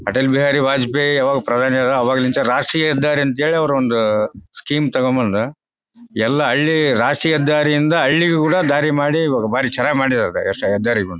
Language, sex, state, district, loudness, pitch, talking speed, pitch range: Kannada, male, Karnataka, Bellary, -16 LUFS, 145 Hz, 150 wpm, 130-150 Hz